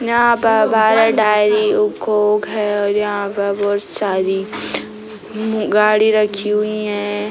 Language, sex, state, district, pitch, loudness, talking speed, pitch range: Hindi, female, Bihar, Sitamarhi, 210 Hz, -16 LUFS, 105 wpm, 205-215 Hz